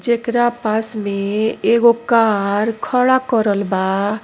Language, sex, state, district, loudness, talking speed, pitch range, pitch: Bhojpuri, female, Uttar Pradesh, Ghazipur, -17 LUFS, 115 wpm, 205-235 Hz, 220 Hz